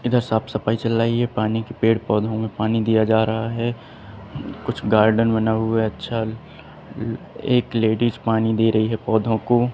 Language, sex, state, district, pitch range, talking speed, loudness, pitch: Hindi, male, Madhya Pradesh, Katni, 110-115 Hz, 180 wpm, -21 LUFS, 110 Hz